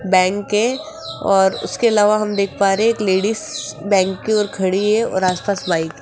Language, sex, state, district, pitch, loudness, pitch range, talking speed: Hindi, female, Rajasthan, Jaipur, 200 Hz, -18 LUFS, 190-220 Hz, 220 wpm